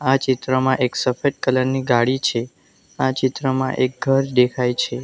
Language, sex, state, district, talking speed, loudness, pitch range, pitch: Gujarati, male, Gujarat, Valsad, 165 wpm, -20 LUFS, 125-130 Hz, 130 Hz